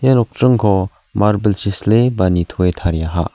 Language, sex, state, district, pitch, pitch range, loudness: Garo, male, Meghalaya, South Garo Hills, 100 Hz, 90-110 Hz, -16 LUFS